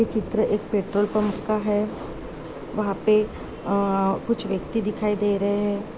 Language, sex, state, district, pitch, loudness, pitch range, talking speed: Hindi, female, Chhattisgarh, Balrampur, 210 Hz, -24 LUFS, 200-215 Hz, 160 wpm